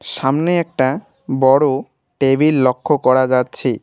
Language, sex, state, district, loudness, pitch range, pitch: Bengali, male, West Bengal, Alipurduar, -16 LUFS, 130-140 Hz, 135 Hz